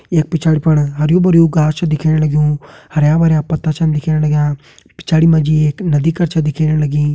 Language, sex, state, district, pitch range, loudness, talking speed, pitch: Hindi, male, Uttarakhand, Tehri Garhwal, 150-160 Hz, -14 LUFS, 195 wpm, 155 Hz